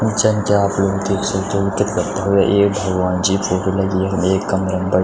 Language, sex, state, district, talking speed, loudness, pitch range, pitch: Garhwali, male, Uttarakhand, Tehri Garhwal, 235 wpm, -17 LUFS, 95-100 Hz, 95 Hz